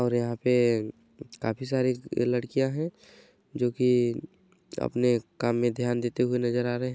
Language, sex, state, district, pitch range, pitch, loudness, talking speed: Hindi, male, Chhattisgarh, Bilaspur, 120-130 Hz, 125 Hz, -27 LUFS, 165 wpm